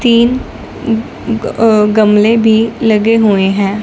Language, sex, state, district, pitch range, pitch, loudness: Hindi, male, Punjab, Fazilka, 210-230 Hz, 220 Hz, -11 LUFS